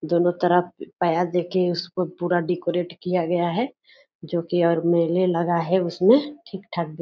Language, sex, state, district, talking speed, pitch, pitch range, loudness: Angika, female, Bihar, Purnia, 160 wpm, 175 Hz, 170-180 Hz, -22 LUFS